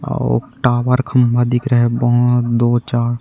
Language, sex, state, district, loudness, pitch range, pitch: Chhattisgarhi, male, Chhattisgarh, Raigarh, -15 LUFS, 120-125 Hz, 120 Hz